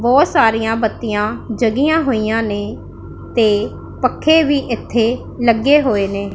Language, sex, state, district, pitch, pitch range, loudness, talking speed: Punjabi, female, Punjab, Pathankot, 230 Hz, 220-270 Hz, -16 LUFS, 125 wpm